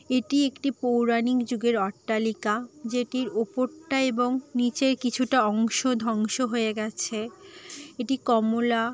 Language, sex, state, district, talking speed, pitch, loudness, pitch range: Bengali, female, West Bengal, Jalpaiguri, 115 wpm, 245 Hz, -26 LUFS, 230-260 Hz